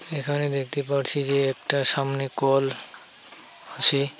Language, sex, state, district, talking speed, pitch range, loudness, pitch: Bengali, male, West Bengal, Alipurduar, 115 wpm, 135-140 Hz, -19 LUFS, 140 Hz